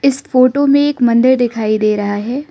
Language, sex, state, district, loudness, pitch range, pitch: Hindi, female, Arunachal Pradesh, Lower Dibang Valley, -13 LUFS, 220-275 Hz, 255 Hz